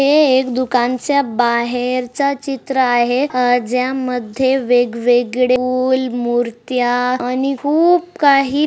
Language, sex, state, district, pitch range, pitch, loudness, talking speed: Marathi, female, Maharashtra, Chandrapur, 245-275 Hz, 255 Hz, -16 LUFS, 105 wpm